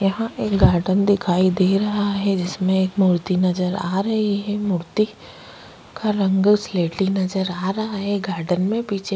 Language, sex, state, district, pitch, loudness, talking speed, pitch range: Hindi, female, Uttarakhand, Tehri Garhwal, 195 Hz, -20 LUFS, 175 wpm, 185-205 Hz